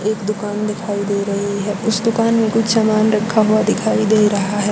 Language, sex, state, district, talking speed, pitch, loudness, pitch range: Hindi, female, Haryana, Charkhi Dadri, 215 wpm, 215 Hz, -17 LUFS, 205-220 Hz